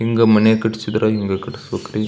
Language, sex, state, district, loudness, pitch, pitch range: Kannada, male, Karnataka, Belgaum, -17 LUFS, 110 Hz, 105-115 Hz